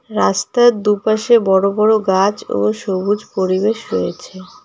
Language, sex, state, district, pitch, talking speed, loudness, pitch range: Bengali, female, West Bengal, Alipurduar, 210 Hz, 115 wpm, -16 LUFS, 190-220 Hz